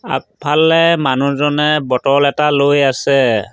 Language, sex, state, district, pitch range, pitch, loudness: Assamese, male, Assam, Sonitpur, 135-150 Hz, 140 Hz, -13 LUFS